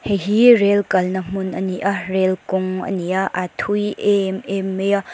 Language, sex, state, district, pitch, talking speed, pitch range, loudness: Mizo, female, Mizoram, Aizawl, 195 Hz, 200 wpm, 185-200 Hz, -19 LUFS